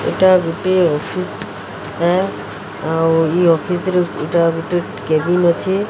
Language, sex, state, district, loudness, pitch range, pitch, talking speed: Odia, female, Odisha, Sambalpur, -16 LUFS, 160-185 Hz, 170 Hz, 120 wpm